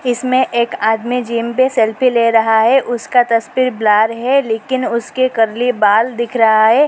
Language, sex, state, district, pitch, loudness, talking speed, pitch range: Hindi, female, Uttar Pradesh, Lalitpur, 235 Hz, -14 LUFS, 175 wpm, 225-255 Hz